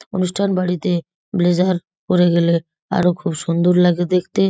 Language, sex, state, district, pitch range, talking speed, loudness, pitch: Bengali, female, West Bengal, Purulia, 175-185 Hz, 135 wpm, -18 LUFS, 180 Hz